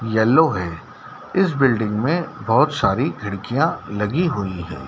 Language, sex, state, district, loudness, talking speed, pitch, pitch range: Hindi, male, Madhya Pradesh, Dhar, -20 LUFS, 135 wpm, 110 Hz, 100-160 Hz